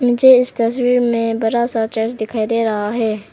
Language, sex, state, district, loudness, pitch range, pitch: Hindi, female, Arunachal Pradesh, Papum Pare, -16 LUFS, 220-245 Hz, 230 Hz